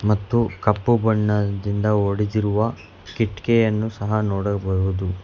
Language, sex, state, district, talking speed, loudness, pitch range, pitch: Kannada, male, Karnataka, Bangalore, 80 wpm, -21 LUFS, 100-110 Hz, 105 Hz